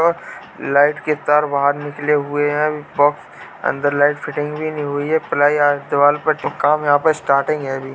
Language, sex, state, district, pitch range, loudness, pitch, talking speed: Hindi, male, Uttar Pradesh, Jalaun, 145-150 Hz, -17 LUFS, 145 Hz, 160 wpm